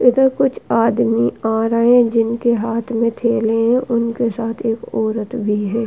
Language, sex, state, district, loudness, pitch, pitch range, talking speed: Hindi, female, Uttar Pradesh, Hamirpur, -17 LUFS, 230 Hz, 225-235 Hz, 175 wpm